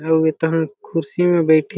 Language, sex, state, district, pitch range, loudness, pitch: Chhattisgarhi, male, Chhattisgarh, Jashpur, 160-175 Hz, -18 LUFS, 160 Hz